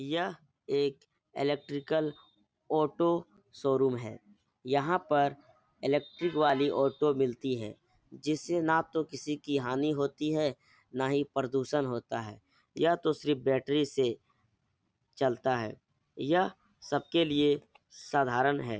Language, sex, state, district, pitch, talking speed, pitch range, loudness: Hindi, male, Bihar, Jahanabad, 140 Hz, 120 wpm, 130-150 Hz, -31 LUFS